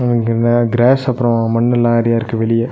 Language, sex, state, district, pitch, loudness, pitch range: Tamil, male, Tamil Nadu, Nilgiris, 115 Hz, -14 LUFS, 115-120 Hz